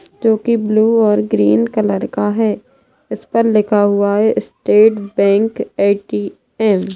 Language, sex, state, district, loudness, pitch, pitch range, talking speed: Hindi, female, Bihar, Darbhanga, -14 LUFS, 210 Hz, 200-220 Hz, 145 wpm